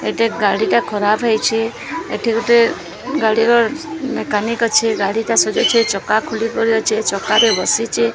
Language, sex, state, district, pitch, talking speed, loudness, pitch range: Odia, female, Odisha, Sambalpur, 225 Hz, 155 wpm, -16 LUFS, 215-230 Hz